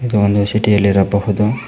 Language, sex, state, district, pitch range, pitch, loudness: Kannada, male, Karnataka, Koppal, 100-105 Hz, 105 Hz, -14 LUFS